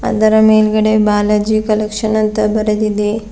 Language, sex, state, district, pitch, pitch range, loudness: Kannada, female, Karnataka, Bidar, 215 Hz, 210-215 Hz, -13 LUFS